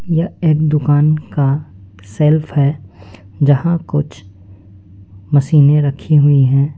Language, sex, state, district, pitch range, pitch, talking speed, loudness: Hindi, male, West Bengal, Alipurduar, 100-150 Hz, 140 Hz, 105 wpm, -14 LUFS